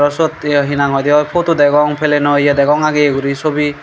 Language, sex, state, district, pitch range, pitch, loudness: Chakma, male, Tripura, Dhalai, 145-150 Hz, 145 Hz, -13 LUFS